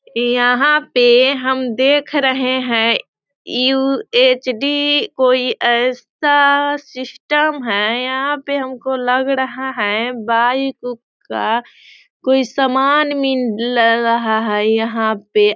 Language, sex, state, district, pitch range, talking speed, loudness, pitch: Hindi, female, Bihar, Sitamarhi, 235-275 Hz, 110 wpm, -15 LUFS, 255 Hz